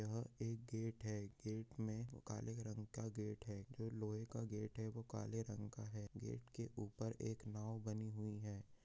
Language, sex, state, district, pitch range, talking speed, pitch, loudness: Hindi, male, Jharkhand, Jamtara, 105-115 Hz, 195 wpm, 110 Hz, -49 LUFS